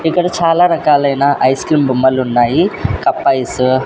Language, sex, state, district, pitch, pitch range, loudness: Telugu, male, Andhra Pradesh, Sri Satya Sai, 140 Hz, 130-160 Hz, -13 LUFS